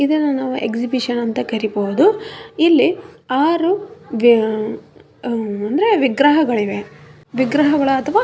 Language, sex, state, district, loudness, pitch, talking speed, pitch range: Kannada, female, Karnataka, Raichur, -17 LUFS, 260 Hz, 95 wpm, 225-325 Hz